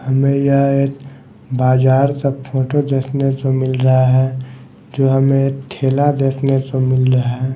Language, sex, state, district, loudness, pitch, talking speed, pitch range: Hindi, male, Maharashtra, Mumbai Suburban, -15 LUFS, 135 Hz, 150 wpm, 130-140 Hz